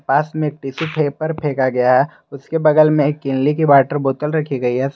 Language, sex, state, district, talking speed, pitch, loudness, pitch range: Hindi, male, Jharkhand, Garhwa, 205 wpm, 145 Hz, -17 LUFS, 135-155 Hz